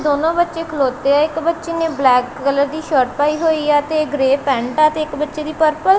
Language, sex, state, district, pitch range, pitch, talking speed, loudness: Punjabi, female, Punjab, Kapurthala, 280-315 Hz, 300 Hz, 240 wpm, -17 LUFS